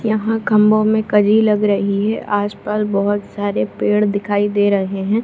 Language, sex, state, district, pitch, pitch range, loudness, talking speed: Hindi, female, Bihar, Supaul, 210 Hz, 205-215 Hz, -16 LUFS, 185 wpm